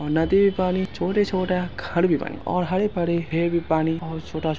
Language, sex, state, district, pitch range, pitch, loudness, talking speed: Angika, male, Bihar, Samastipur, 160-185 Hz, 170 Hz, -23 LUFS, 170 wpm